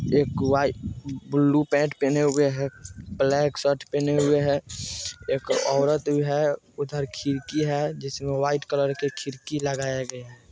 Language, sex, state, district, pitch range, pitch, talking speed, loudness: Bajjika, male, Bihar, Vaishali, 135-145 Hz, 140 Hz, 155 wpm, -25 LUFS